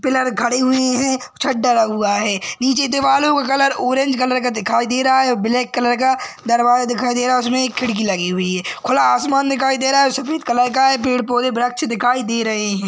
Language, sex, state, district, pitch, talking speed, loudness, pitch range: Hindi, male, Maharashtra, Dhule, 250 Hz, 240 wpm, -17 LUFS, 240-265 Hz